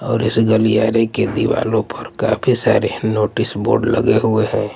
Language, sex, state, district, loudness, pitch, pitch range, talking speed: Hindi, male, Punjab, Pathankot, -16 LUFS, 110 Hz, 110-115 Hz, 165 wpm